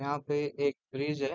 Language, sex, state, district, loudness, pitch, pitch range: Hindi, male, Uttar Pradesh, Deoria, -33 LUFS, 145 Hz, 140-145 Hz